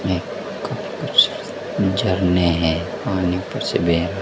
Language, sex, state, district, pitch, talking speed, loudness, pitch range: Hindi, male, Madhya Pradesh, Dhar, 90 Hz, 130 wpm, -20 LUFS, 85-95 Hz